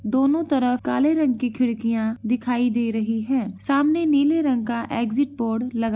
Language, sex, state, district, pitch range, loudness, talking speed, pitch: Hindi, female, Uttar Pradesh, Ghazipur, 230-275 Hz, -22 LUFS, 180 wpm, 245 Hz